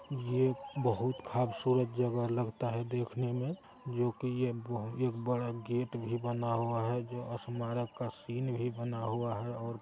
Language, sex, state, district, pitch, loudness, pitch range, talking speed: Hindi, male, Bihar, Araria, 120 Hz, -35 LUFS, 120-125 Hz, 170 wpm